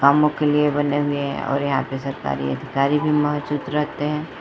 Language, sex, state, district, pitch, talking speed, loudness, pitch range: Hindi, female, Jharkhand, Palamu, 145 Hz, 205 wpm, -21 LUFS, 135-150 Hz